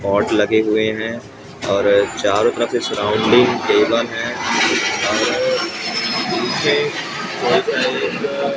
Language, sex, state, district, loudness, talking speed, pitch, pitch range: Hindi, male, Maharashtra, Mumbai Suburban, -17 LUFS, 110 wpm, 120 Hz, 105-140 Hz